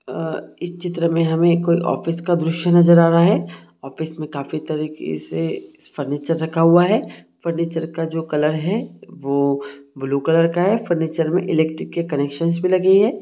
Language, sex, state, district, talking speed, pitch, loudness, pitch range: Hindi, male, Jharkhand, Jamtara, 180 wpm, 165 Hz, -19 LUFS, 145-170 Hz